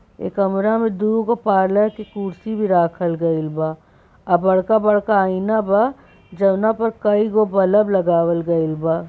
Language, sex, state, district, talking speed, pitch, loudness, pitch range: Bhojpuri, female, Bihar, Saran, 145 wpm, 200 Hz, -18 LUFS, 175-215 Hz